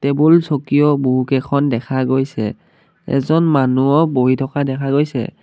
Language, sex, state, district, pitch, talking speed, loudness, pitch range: Assamese, male, Assam, Kamrup Metropolitan, 140 Hz, 120 wpm, -16 LUFS, 130-150 Hz